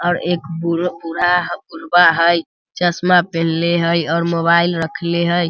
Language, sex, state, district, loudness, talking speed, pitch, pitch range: Hindi, male, Bihar, Sitamarhi, -16 LUFS, 140 wpm, 170 Hz, 165-175 Hz